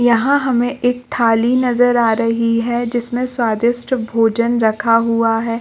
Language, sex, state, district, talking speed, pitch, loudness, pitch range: Hindi, female, Chhattisgarh, Balrampur, 150 wpm, 235 Hz, -16 LUFS, 230-245 Hz